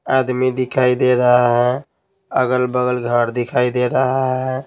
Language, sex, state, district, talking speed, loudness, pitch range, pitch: Hindi, male, Bihar, Patna, 140 wpm, -17 LUFS, 125-130 Hz, 125 Hz